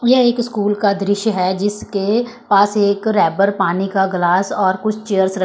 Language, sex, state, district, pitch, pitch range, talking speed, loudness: Hindi, female, Chandigarh, Chandigarh, 200 Hz, 190-215 Hz, 185 wpm, -16 LUFS